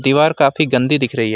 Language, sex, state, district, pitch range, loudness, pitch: Hindi, male, West Bengal, Alipurduar, 125-150 Hz, -14 LUFS, 140 Hz